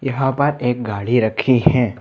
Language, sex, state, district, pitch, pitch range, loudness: Hindi, male, Assam, Hailakandi, 125 Hz, 120-135 Hz, -17 LUFS